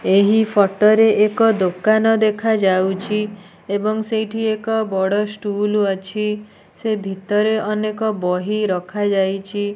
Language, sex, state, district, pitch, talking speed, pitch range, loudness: Odia, female, Odisha, Nuapada, 210 Hz, 105 wpm, 195-215 Hz, -18 LUFS